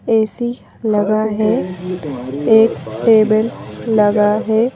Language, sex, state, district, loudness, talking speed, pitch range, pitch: Hindi, female, Madhya Pradesh, Bhopal, -16 LUFS, 90 wpm, 210-225 Hz, 215 Hz